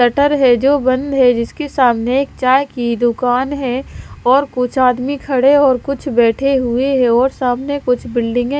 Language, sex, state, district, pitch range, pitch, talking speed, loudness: Hindi, female, Himachal Pradesh, Shimla, 245-275 Hz, 255 Hz, 180 wpm, -15 LUFS